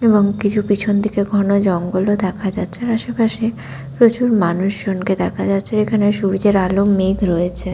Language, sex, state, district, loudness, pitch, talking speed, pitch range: Bengali, female, West Bengal, Paschim Medinipur, -17 LUFS, 200 Hz, 145 wpm, 190-210 Hz